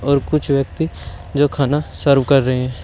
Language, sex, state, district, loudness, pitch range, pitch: Hindi, male, Uttar Pradesh, Shamli, -17 LUFS, 135-145 Hz, 140 Hz